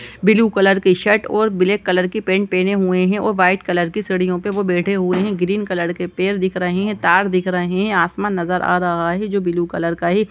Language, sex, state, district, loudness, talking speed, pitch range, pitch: Hindi, female, Chhattisgarh, Sukma, -17 LUFS, 250 wpm, 180-200 Hz, 185 Hz